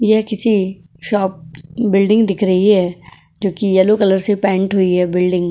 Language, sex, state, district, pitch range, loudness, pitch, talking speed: Hindi, female, Goa, North and South Goa, 180-210 Hz, -15 LUFS, 195 Hz, 175 wpm